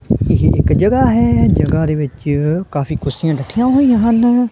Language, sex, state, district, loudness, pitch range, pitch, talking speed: Punjabi, male, Punjab, Kapurthala, -14 LUFS, 145-230 Hz, 155 Hz, 145 wpm